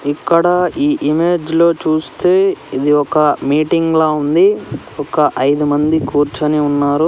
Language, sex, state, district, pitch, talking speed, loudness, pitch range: Telugu, male, Andhra Pradesh, Sri Satya Sai, 155 Hz, 125 wpm, -14 LUFS, 145-170 Hz